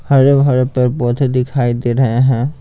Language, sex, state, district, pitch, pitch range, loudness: Hindi, male, Bihar, Patna, 130 Hz, 125-135 Hz, -14 LUFS